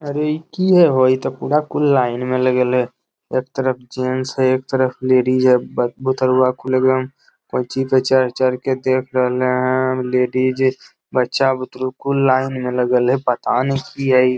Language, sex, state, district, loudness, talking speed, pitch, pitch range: Magahi, male, Bihar, Lakhisarai, -18 LUFS, 185 wpm, 130 Hz, 125-130 Hz